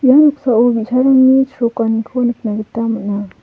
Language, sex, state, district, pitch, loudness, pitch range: Garo, female, Meghalaya, South Garo Hills, 235 Hz, -14 LUFS, 225-260 Hz